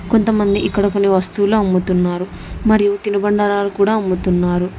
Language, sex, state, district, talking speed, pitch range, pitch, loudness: Telugu, female, Telangana, Hyderabad, 115 wpm, 185-205 Hz, 200 Hz, -16 LUFS